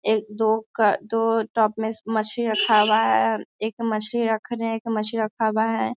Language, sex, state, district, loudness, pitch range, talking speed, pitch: Hindi, female, Bihar, Sitamarhi, -22 LUFS, 215-225 Hz, 210 wpm, 220 Hz